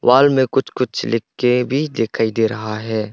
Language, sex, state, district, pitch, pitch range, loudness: Hindi, male, Arunachal Pradesh, Longding, 115 Hz, 110-130 Hz, -18 LUFS